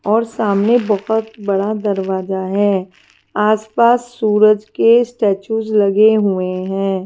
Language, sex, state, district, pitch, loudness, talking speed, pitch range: Hindi, female, Himachal Pradesh, Shimla, 210 Hz, -15 LUFS, 110 wpm, 195-220 Hz